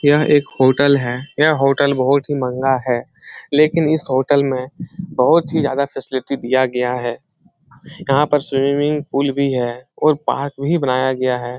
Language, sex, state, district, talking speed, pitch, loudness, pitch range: Hindi, male, Bihar, Jahanabad, 170 wpm, 140 Hz, -17 LUFS, 130-150 Hz